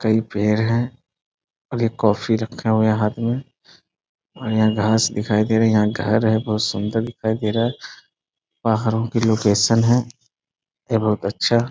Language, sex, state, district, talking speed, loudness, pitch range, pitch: Hindi, male, Bihar, Sitamarhi, 165 wpm, -20 LUFS, 110-115 Hz, 110 Hz